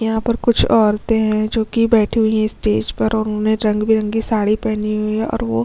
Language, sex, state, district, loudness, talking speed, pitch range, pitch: Hindi, female, Chhattisgarh, Kabirdham, -17 LUFS, 225 wpm, 215-225 Hz, 220 Hz